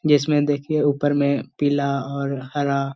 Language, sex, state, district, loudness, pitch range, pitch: Hindi, male, Bihar, Gaya, -21 LUFS, 140-145 Hz, 145 Hz